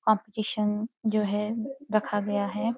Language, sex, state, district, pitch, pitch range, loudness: Hindi, female, Uttarakhand, Uttarkashi, 215 Hz, 210-225 Hz, -28 LUFS